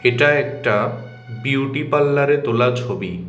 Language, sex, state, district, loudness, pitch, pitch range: Bengali, male, Tripura, West Tripura, -18 LUFS, 135 Hz, 125-145 Hz